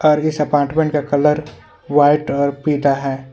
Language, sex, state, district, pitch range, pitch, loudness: Hindi, male, Jharkhand, Ranchi, 140-150 Hz, 145 Hz, -17 LUFS